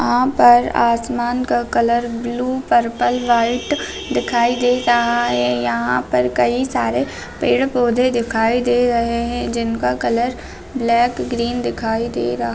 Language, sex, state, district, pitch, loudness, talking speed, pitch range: Hindi, female, Bihar, Bhagalpur, 235 Hz, -17 LUFS, 135 wpm, 230-245 Hz